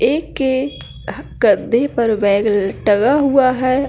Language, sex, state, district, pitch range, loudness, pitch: Hindi, female, Chhattisgarh, Kabirdham, 215-275 Hz, -16 LUFS, 255 Hz